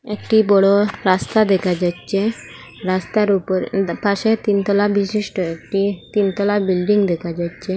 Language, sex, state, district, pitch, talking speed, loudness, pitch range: Bengali, female, Assam, Hailakandi, 200 Hz, 130 wpm, -18 LUFS, 185-205 Hz